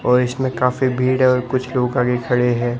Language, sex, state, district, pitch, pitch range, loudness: Hindi, male, Rajasthan, Barmer, 125 Hz, 125-130 Hz, -18 LUFS